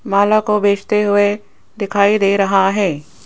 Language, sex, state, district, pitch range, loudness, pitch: Hindi, female, Rajasthan, Jaipur, 195-210 Hz, -15 LUFS, 200 Hz